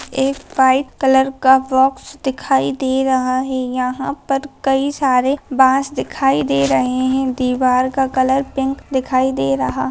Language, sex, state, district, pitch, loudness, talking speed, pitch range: Hindi, female, Bihar, Darbhanga, 265 Hz, -17 LUFS, 150 wpm, 255-270 Hz